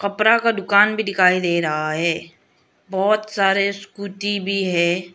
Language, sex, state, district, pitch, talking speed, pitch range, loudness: Hindi, female, Arunachal Pradesh, Lower Dibang Valley, 195 Hz, 150 wpm, 180-205 Hz, -19 LUFS